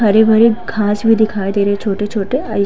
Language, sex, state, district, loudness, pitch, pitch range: Hindi, female, Uttar Pradesh, Hamirpur, -14 LUFS, 210 Hz, 200-220 Hz